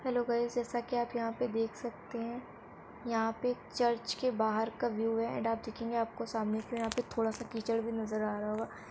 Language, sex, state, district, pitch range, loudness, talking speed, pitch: Hindi, female, Uttar Pradesh, Etah, 225-240 Hz, -35 LUFS, 235 wpm, 230 Hz